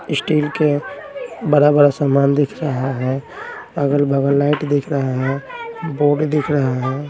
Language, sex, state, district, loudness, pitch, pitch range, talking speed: Hindi, male, Bihar, Patna, -17 LUFS, 145 Hz, 135-150 Hz, 135 wpm